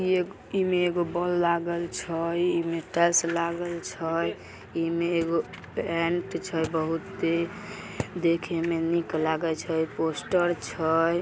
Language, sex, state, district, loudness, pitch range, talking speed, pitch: Magahi, female, Bihar, Samastipur, -27 LUFS, 165-175 Hz, 125 wpm, 170 Hz